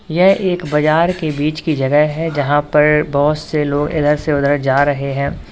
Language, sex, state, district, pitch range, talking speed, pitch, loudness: Hindi, male, Uttar Pradesh, Lalitpur, 145-155 Hz, 205 wpm, 150 Hz, -15 LUFS